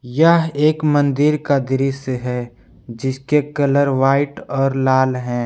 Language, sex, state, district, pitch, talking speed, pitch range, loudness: Hindi, male, Jharkhand, Palamu, 135 Hz, 130 wpm, 130-145 Hz, -17 LUFS